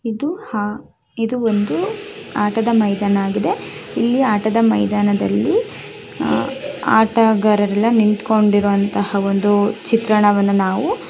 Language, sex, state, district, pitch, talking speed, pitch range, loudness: Kannada, female, Karnataka, Shimoga, 210 Hz, 85 wpm, 205-230 Hz, -17 LUFS